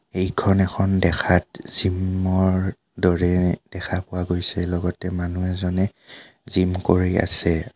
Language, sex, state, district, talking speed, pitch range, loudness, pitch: Assamese, male, Assam, Kamrup Metropolitan, 125 wpm, 90-95 Hz, -22 LUFS, 90 Hz